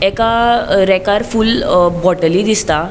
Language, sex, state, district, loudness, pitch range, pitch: Konkani, female, Goa, North and South Goa, -13 LUFS, 180-225 Hz, 195 Hz